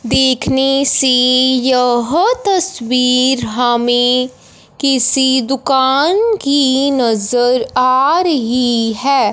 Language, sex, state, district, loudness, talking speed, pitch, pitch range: Hindi, female, Punjab, Fazilka, -13 LUFS, 75 wpm, 260 Hz, 250-275 Hz